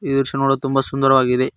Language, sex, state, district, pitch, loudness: Kannada, male, Karnataka, Koppal, 135 Hz, -17 LUFS